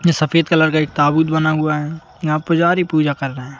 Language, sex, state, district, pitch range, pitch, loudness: Hindi, male, Madhya Pradesh, Bhopal, 150-165 Hz, 155 Hz, -16 LUFS